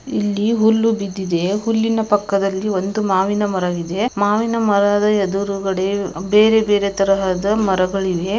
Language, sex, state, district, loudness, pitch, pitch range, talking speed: Kannada, female, Karnataka, Belgaum, -17 LUFS, 200 Hz, 190-210 Hz, 115 wpm